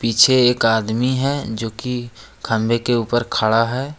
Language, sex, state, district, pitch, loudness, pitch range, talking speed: Hindi, male, Jharkhand, Ranchi, 115 Hz, -18 LUFS, 115-125 Hz, 165 wpm